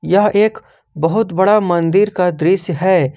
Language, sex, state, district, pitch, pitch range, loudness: Hindi, male, Jharkhand, Ranchi, 185 Hz, 175-205 Hz, -14 LUFS